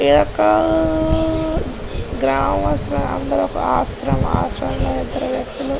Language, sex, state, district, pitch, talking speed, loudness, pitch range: Telugu, female, Andhra Pradesh, Guntur, 105 Hz, 85 wpm, -19 LUFS, 100-135 Hz